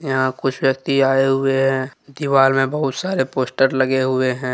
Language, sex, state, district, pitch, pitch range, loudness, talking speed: Hindi, male, Jharkhand, Deoghar, 135 Hz, 130-135 Hz, -18 LUFS, 185 wpm